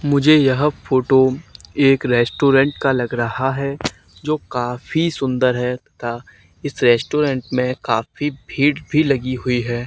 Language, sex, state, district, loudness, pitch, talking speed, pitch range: Hindi, male, Haryana, Charkhi Dadri, -18 LUFS, 130 Hz, 140 wpm, 125-145 Hz